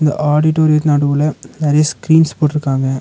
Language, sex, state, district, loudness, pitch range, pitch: Tamil, male, Tamil Nadu, Nilgiris, -14 LUFS, 145-155 Hz, 150 Hz